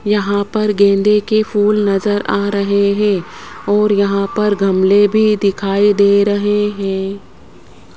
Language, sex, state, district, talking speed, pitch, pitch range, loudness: Hindi, male, Rajasthan, Jaipur, 135 wpm, 200 Hz, 195-210 Hz, -14 LUFS